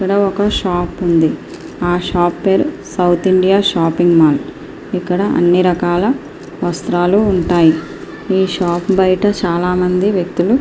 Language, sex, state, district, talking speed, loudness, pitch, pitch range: Telugu, female, Andhra Pradesh, Srikakulam, 125 wpm, -14 LUFS, 180 Hz, 175-200 Hz